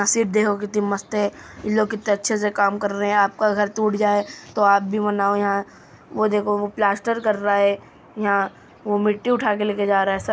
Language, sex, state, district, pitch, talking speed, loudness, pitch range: Hindi, male, Uttar Pradesh, Muzaffarnagar, 205 Hz, 220 wpm, -21 LUFS, 200-210 Hz